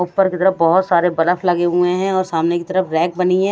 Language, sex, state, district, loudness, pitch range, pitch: Hindi, female, Haryana, Rohtak, -16 LUFS, 175-185 Hz, 180 Hz